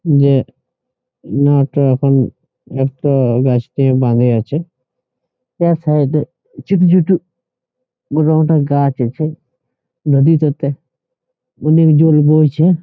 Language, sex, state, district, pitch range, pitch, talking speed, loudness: Bengali, male, West Bengal, Jhargram, 135-160 Hz, 150 Hz, 105 wpm, -14 LUFS